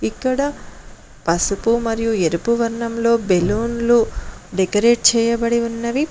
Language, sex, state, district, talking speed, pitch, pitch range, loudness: Telugu, female, Telangana, Mahabubabad, 90 wpm, 230 Hz, 200-235 Hz, -18 LUFS